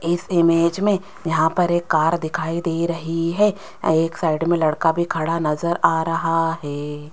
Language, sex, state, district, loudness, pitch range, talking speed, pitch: Hindi, female, Rajasthan, Jaipur, -20 LUFS, 160-170 Hz, 175 wpm, 165 Hz